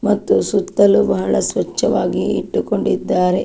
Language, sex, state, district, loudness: Kannada, female, Karnataka, Dakshina Kannada, -17 LUFS